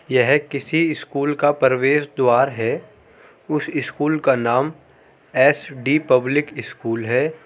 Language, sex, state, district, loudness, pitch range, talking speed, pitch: Hindi, male, Uttar Pradesh, Muzaffarnagar, -19 LUFS, 130-150 Hz, 130 wpm, 140 Hz